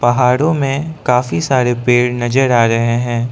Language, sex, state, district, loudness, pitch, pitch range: Hindi, male, Arunachal Pradesh, Lower Dibang Valley, -14 LUFS, 125 Hz, 120-135 Hz